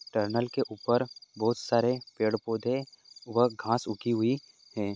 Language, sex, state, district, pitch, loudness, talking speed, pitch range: Hindi, male, Goa, North and South Goa, 120 Hz, -30 LUFS, 145 wpm, 110-125 Hz